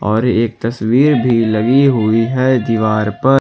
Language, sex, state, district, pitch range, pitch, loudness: Hindi, male, Jharkhand, Ranchi, 110-130 Hz, 115 Hz, -14 LUFS